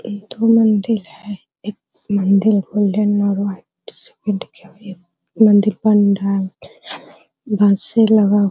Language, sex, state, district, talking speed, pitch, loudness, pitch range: Hindi, female, Bihar, Araria, 150 wpm, 205 Hz, -16 LUFS, 200-215 Hz